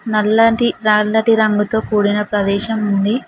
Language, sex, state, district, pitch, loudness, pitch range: Telugu, female, Telangana, Mahabubabad, 215 Hz, -15 LUFS, 210-220 Hz